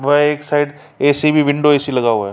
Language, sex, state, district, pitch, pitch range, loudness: Hindi, male, Uttar Pradesh, Varanasi, 145 Hz, 140-150 Hz, -15 LUFS